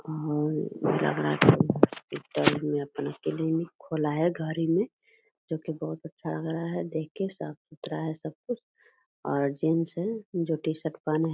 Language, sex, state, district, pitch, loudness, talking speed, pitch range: Hindi, female, Bihar, Purnia, 160 Hz, -29 LUFS, 175 wpm, 155-170 Hz